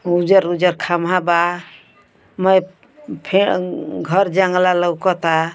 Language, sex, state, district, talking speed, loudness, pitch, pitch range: Bhojpuri, female, Uttar Pradesh, Ghazipur, 110 wpm, -17 LUFS, 180 Hz, 175-190 Hz